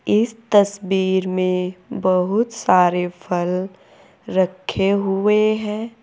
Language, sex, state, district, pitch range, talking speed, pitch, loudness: Hindi, female, Uttar Pradesh, Saharanpur, 185-210 Hz, 90 wpm, 190 Hz, -19 LUFS